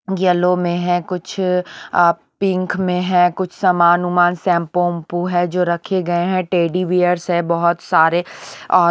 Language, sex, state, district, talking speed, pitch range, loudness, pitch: Hindi, female, Haryana, Rohtak, 160 wpm, 175-180 Hz, -17 LUFS, 180 Hz